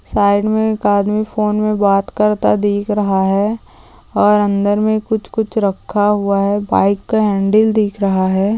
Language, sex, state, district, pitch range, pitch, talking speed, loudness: Hindi, female, Jharkhand, Sahebganj, 200-215 Hz, 205 Hz, 175 wpm, -15 LUFS